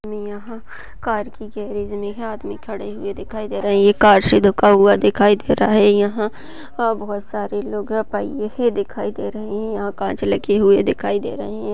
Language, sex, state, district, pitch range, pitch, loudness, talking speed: Hindi, female, Chhattisgarh, Balrampur, 205-215 Hz, 210 Hz, -18 LUFS, 180 wpm